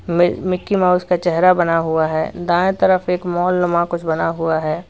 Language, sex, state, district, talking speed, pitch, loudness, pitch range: Hindi, male, Uttar Pradesh, Lalitpur, 210 wpm, 175 Hz, -17 LUFS, 165-180 Hz